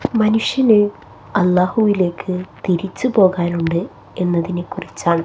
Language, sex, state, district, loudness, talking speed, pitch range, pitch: Malayalam, female, Kerala, Kasaragod, -17 LUFS, 55 wpm, 175-210 Hz, 185 Hz